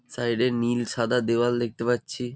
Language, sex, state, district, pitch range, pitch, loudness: Bengali, male, West Bengal, Jalpaiguri, 120-125 Hz, 120 Hz, -25 LUFS